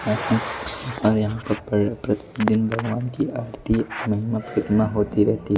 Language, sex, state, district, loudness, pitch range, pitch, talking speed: Hindi, male, Odisha, Malkangiri, -23 LUFS, 105-115 Hz, 110 Hz, 120 wpm